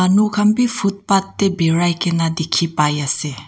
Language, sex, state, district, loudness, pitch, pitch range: Nagamese, female, Nagaland, Kohima, -17 LUFS, 175 Hz, 160-200 Hz